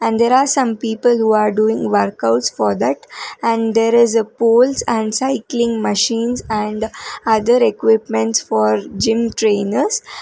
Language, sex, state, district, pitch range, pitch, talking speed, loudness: English, female, Karnataka, Bangalore, 215-235 Hz, 225 Hz, 140 wpm, -16 LUFS